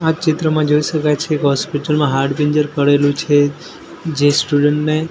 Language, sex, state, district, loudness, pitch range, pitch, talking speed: Gujarati, male, Gujarat, Gandhinagar, -15 LUFS, 145-155 Hz, 150 Hz, 165 wpm